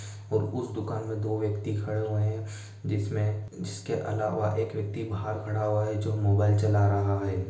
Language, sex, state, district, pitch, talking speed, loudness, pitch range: Hindi, male, Bihar, Begusarai, 105 Hz, 185 wpm, -29 LUFS, 105-110 Hz